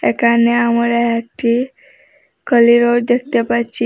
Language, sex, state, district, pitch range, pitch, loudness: Bengali, female, Assam, Hailakandi, 235-240 Hz, 235 Hz, -14 LUFS